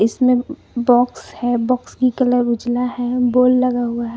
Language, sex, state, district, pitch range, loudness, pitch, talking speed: Hindi, female, Jharkhand, Palamu, 240-250 Hz, -17 LUFS, 245 Hz, 175 wpm